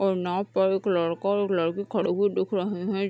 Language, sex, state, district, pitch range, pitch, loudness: Hindi, female, Uttar Pradesh, Deoria, 185-200 Hz, 195 Hz, -26 LUFS